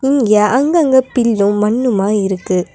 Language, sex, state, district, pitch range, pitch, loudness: Tamil, female, Tamil Nadu, Nilgiris, 200-260 Hz, 220 Hz, -13 LUFS